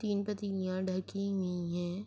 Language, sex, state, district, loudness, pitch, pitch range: Urdu, female, Andhra Pradesh, Anantapur, -35 LUFS, 190 Hz, 185-200 Hz